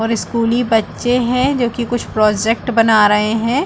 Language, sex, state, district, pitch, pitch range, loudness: Hindi, female, Chhattisgarh, Balrampur, 230 Hz, 220-245 Hz, -15 LUFS